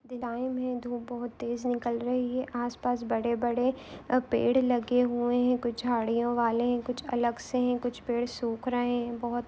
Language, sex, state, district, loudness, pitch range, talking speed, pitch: Hindi, female, Maharashtra, Aurangabad, -29 LUFS, 240-250 Hz, 185 wpm, 245 Hz